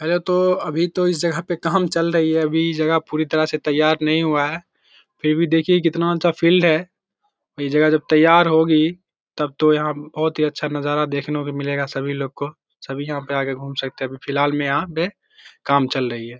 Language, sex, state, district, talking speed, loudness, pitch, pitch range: Hindi, male, Bihar, Purnia, 225 wpm, -19 LUFS, 155 Hz, 145-165 Hz